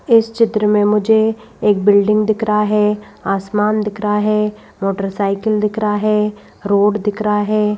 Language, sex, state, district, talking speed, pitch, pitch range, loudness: Hindi, female, Madhya Pradesh, Bhopal, 160 wpm, 210 Hz, 210-215 Hz, -16 LUFS